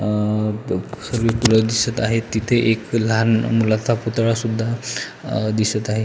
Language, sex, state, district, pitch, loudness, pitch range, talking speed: Marathi, male, Maharashtra, Pune, 115 Hz, -19 LUFS, 110-115 Hz, 140 wpm